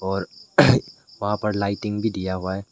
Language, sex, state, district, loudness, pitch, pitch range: Hindi, male, Meghalaya, West Garo Hills, -23 LUFS, 100 Hz, 95-105 Hz